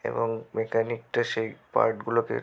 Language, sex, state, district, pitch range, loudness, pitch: Bengali, male, West Bengal, Malda, 110-115 Hz, -28 LUFS, 115 Hz